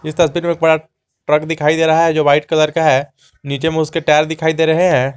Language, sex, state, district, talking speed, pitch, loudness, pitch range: Hindi, male, Jharkhand, Garhwa, 265 wpm, 160 Hz, -15 LUFS, 150-160 Hz